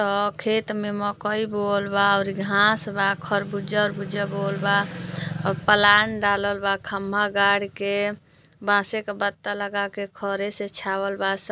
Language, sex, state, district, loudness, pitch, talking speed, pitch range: Bhojpuri, female, Uttar Pradesh, Deoria, -23 LUFS, 200 Hz, 160 wpm, 195-205 Hz